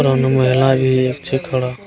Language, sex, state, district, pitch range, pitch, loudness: Maithili, male, Bihar, Begusarai, 130-135 Hz, 130 Hz, -16 LUFS